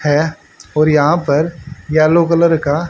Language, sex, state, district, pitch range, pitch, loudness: Hindi, male, Haryana, Rohtak, 145-165 Hz, 155 Hz, -14 LUFS